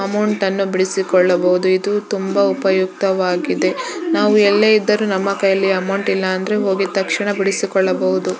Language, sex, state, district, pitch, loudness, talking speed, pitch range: Kannada, female, Karnataka, Shimoga, 195 Hz, -16 LUFS, 85 wpm, 185-205 Hz